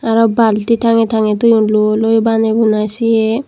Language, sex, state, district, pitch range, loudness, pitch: Chakma, female, Tripura, Dhalai, 215-230 Hz, -13 LUFS, 225 Hz